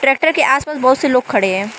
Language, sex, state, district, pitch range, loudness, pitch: Hindi, female, Arunachal Pradesh, Lower Dibang Valley, 215-295 Hz, -14 LUFS, 265 Hz